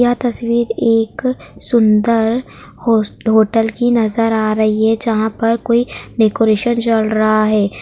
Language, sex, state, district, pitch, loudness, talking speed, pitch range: Hindi, female, West Bengal, Kolkata, 225 Hz, -15 LUFS, 140 wpm, 220-235 Hz